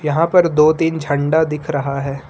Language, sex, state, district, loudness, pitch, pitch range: Hindi, male, Uttar Pradesh, Lucknow, -16 LUFS, 150 Hz, 145-160 Hz